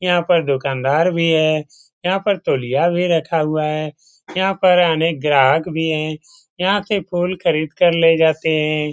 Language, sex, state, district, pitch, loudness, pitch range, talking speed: Hindi, male, Bihar, Lakhisarai, 165 Hz, -17 LUFS, 155-180 Hz, 170 wpm